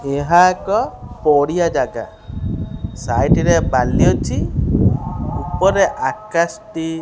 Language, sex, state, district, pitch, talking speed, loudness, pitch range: Odia, male, Odisha, Khordha, 165 Hz, 85 wpm, -17 LUFS, 150-175 Hz